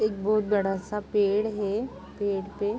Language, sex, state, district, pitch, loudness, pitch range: Hindi, female, Uttar Pradesh, Jalaun, 205 Hz, -27 LUFS, 200-215 Hz